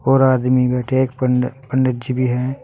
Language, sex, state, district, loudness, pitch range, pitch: Hindi, male, Uttar Pradesh, Saharanpur, -18 LUFS, 125-130 Hz, 130 Hz